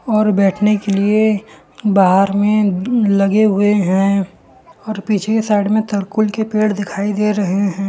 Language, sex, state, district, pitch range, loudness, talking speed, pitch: Hindi, male, Gujarat, Valsad, 195-215 Hz, -15 LUFS, 150 wpm, 205 Hz